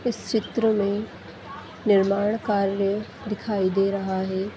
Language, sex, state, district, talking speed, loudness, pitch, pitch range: Hindi, female, Uttar Pradesh, Deoria, 105 wpm, -24 LUFS, 205 Hz, 195-215 Hz